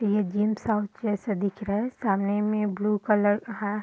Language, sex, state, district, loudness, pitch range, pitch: Hindi, female, Bihar, Purnia, -26 LUFS, 205-215 Hz, 210 Hz